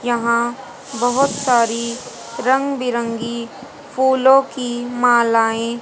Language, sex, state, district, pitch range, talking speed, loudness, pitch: Hindi, female, Haryana, Jhajjar, 235-265 Hz, 95 wpm, -17 LUFS, 245 Hz